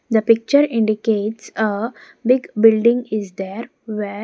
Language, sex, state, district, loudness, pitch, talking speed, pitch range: English, female, Maharashtra, Gondia, -18 LUFS, 225 Hz, 140 wpm, 215-235 Hz